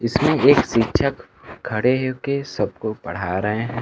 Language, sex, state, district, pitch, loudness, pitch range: Hindi, male, Bihar, Kaimur, 115 Hz, -20 LUFS, 105-130 Hz